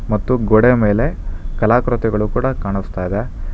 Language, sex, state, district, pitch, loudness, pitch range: Kannada, male, Karnataka, Bangalore, 105 Hz, -17 LUFS, 100-120 Hz